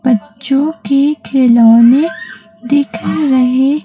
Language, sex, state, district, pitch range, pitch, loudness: Hindi, female, Chhattisgarh, Raipur, 235-285 Hz, 260 Hz, -11 LUFS